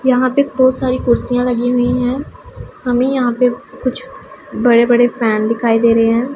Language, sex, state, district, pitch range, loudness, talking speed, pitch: Hindi, female, Punjab, Pathankot, 235-255 Hz, -14 LUFS, 180 wpm, 245 Hz